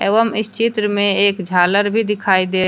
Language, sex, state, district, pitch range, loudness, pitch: Hindi, female, Jharkhand, Deoghar, 195-215 Hz, -16 LUFS, 200 Hz